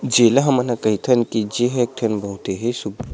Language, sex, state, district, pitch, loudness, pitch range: Chhattisgarhi, male, Chhattisgarh, Sarguja, 115 Hz, -19 LUFS, 110-125 Hz